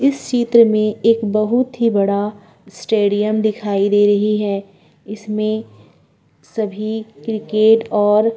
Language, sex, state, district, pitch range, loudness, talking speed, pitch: Hindi, female, Uttarakhand, Tehri Garhwal, 205-220 Hz, -17 LUFS, 120 wpm, 215 Hz